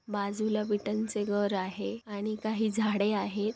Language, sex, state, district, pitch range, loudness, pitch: Marathi, female, Maharashtra, Solapur, 205-215 Hz, -31 LUFS, 210 Hz